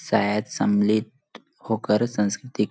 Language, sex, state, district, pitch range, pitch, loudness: Hindi, male, Chhattisgarh, Bilaspur, 105-120 Hz, 105 Hz, -23 LUFS